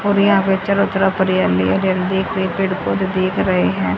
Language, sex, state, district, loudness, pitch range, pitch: Hindi, female, Haryana, Rohtak, -17 LUFS, 185-195 Hz, 190 Hz